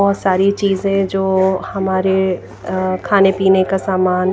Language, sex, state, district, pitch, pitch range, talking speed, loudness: Hindi, female, Himachal Pradesh, Shimla, 190 Hz, 185-195 Hz, 140 wpm, -16 LUFS